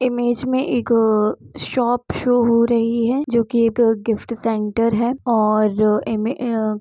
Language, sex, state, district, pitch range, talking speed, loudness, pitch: Hindi, female, Jharkhand, Jamtara, 220-245 Hz, 140 wpm, -18 LUFS, 235 Hz